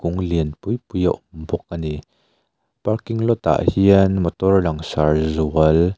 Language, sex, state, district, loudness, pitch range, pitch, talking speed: Mizo, male, Mizoram, Aizawl, -19 LUFS, 80-100 Hz, 85 Hz, 160 wpm